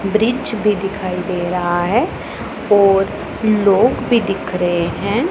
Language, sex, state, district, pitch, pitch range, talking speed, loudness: Hindi, female, Punjab, Pathankot, 195 Hz, 180-215 Hz, 135 wpm, -17 LUFS